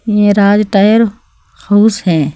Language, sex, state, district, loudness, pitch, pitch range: Hindi, female, Uttar Pradesh, Saharanpur, -10 LUFS, 205 Hz, 200-210 Hz